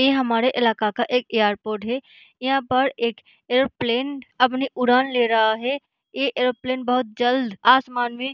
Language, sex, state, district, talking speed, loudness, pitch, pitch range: Hindi, female, Bihar, Saharsa, 165 wpm, -21 LUFS, 250 Hz, 235-260 Hz